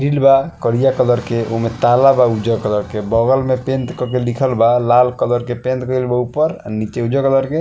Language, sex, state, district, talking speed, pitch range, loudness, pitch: Bhojpuri, male, Bihar, East Champaran, 220 wpm, 115-135 Hz, -16 LUFS, 125 Hz